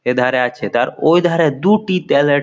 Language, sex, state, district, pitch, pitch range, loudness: Bengali, male, West Bengal, Malda, 140 Hz, 125-170 Hz, -15 LUFS